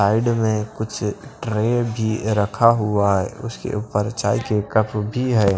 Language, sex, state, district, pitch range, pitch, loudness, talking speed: Hindi, male, Punjab, Pathankot, 105-115 Hz, 110 Hz, -21 LUFS, 160 wpm